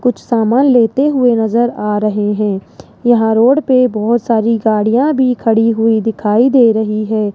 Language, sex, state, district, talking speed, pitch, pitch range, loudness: Hindi, male, Rajasthan, Jaipur, 170 wpm, 230 Hz, 220-245 Hz, -12 LUFS